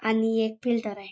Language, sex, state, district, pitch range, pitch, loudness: Marathi, female, Maharashtra, Chandrapur, 210-225 Hz, 220 Hz, -26 LUFS